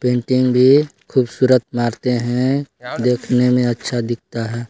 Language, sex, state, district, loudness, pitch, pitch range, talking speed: Hindi, male, Chhattisgarh, Balrampur, -17 LUFS, 125 Hz, 120-130 Hz, 130 wpm